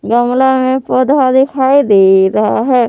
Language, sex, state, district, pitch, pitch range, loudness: Hindi, female, Jharkhand, Palamu, 255 Hz, 225-265 Hz, -10 LUFS